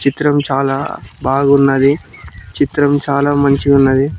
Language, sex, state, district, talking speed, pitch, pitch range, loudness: Telugu, male, Telangana, Mahabubabad, 85 wpm, 140 Hz, 135-145 Hz, -13 LUFS